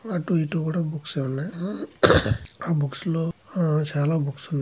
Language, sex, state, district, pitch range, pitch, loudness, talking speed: Telugu, male, Andhra Pradesh, Chittoor, 145-170 Hz, 160 Hz, -24 LUFS, 170 wpm